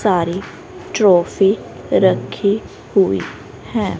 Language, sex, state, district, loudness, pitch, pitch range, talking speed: Hindi, female, Haryana, Rohtak, -17 LUFS, 195 Hz, 180-200 Hz, 75 wpm